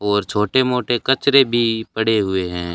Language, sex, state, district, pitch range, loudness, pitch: Hindi, male, Rajasthan, Bikaner, 105-125 Hz, -17 LUFS, 110 Hz